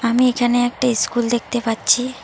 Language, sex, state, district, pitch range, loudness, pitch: Bengali, female, West Bengal, Alipurduar, 235-245 Hz, -18 LUFS, 240 Hz